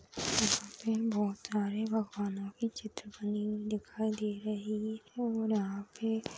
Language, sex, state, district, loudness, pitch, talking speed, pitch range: Hindi, female, Chhattisgarh, Bastar, -35 LUFS, 215 Hz, 170 wpm, 210-220 Hz